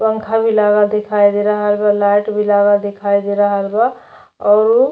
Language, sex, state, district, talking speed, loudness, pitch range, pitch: Bhojpuri, female, Uttar Pradesh, Deoria, 195 wpm, -14 LUFS, 205-215 Hz, 210 Hz